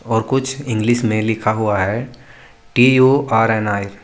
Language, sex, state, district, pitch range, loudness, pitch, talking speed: Hindi, male, Uttar Pradesh, Saharanpur, 110-125 Hz, -16 LUFS, 115 Hz, 195 wpm